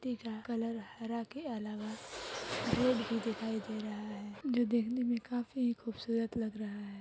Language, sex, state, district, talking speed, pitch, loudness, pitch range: Hindi, female, Chhattisgarh, Raigarh, 170 wpm, 230 Hz, -37 LUFS, 215-240 Hz